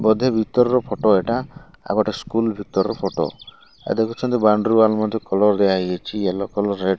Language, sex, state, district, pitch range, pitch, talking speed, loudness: Odia, male, Odisha, Malkangiri, 100-115 Hz, 110 Hz, 170 wpm, -20 LUFS